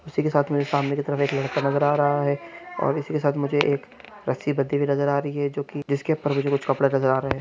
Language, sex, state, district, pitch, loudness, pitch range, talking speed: Hindi, male, Andhra Pradesh, Srikakulam, 140 Hz, -24 LUFS, 140-145 Hz, 275 wpm